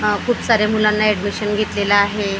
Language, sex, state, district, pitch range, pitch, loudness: Marathi, female, Maharashtra, Gondia, 205-215 Hz, 210 Hz, -17 LUFS